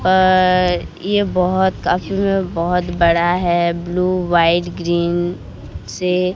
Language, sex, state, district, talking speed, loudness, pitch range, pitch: Hindi, female, Odisha, Sambalpur, 115 wpm, -17 LUFS, 170-185 Hz, 175 Hz